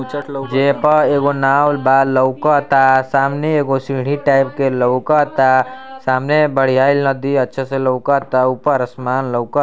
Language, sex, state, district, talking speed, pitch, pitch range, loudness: Bhojpuri, male, Uttar Pradesh, Ghazipur, 130 wpm, 135 Hz, 130-145 Hz, -15 LUFS